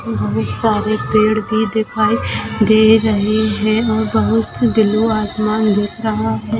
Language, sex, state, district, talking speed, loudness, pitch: Hindi, female, Maharashtra, Pune, 145 wpm, -15 LUFS, 215 Hz